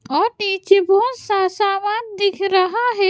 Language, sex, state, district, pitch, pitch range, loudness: Hindi, female, Bihar, West Champaran, 400 Hz, 390-435 Hz, -18 LUFS